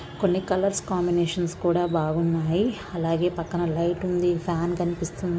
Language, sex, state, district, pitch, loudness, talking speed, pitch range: Telugu, female, Andhra Pradesh, Krishna, 175 Hz, -25 LUFS, 125 wpm, 170-180 Hz